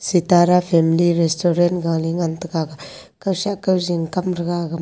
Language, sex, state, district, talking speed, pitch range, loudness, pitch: Wancho, female, Arunachal Pradesh, Longding, 175 wpm, 165-180 Hz, -19 LUFS, 175 Hz